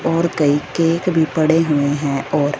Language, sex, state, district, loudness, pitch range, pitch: Hindi, female, Punjab, Fazilka, -17 LUFS, 145-165 Hz, 155 Hz